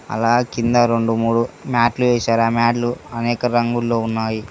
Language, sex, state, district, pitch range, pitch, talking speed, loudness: Telugu, male, Telangana, Mahabubabad, 115-120 Hz, 120 Hz, 145 wpm, -18 LUFS